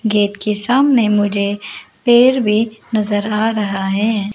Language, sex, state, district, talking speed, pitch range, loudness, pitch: Hindi, female, Arunachal Pradesh, Lower Dibang Valley, 140 wpm, 205-225 Hz, -15 LUFS, 210 Hz